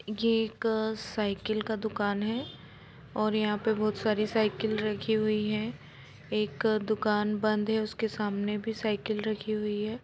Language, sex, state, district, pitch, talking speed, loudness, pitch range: Hindi, female, Jharkhand, Jamtara, 215 Hz, 155 wpm, -30 LUFS, 210-220 Hz